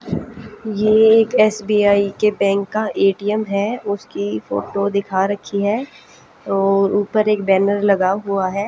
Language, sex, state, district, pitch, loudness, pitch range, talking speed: Hindi, female, Haryana, Jhajjar, 200 Hz, -17 LUFS, 195-215 Hz, 140 wpm